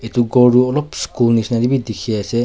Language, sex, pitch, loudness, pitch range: Nagamese, male, 120 Hz, -16 LUFS, 115-125 Hz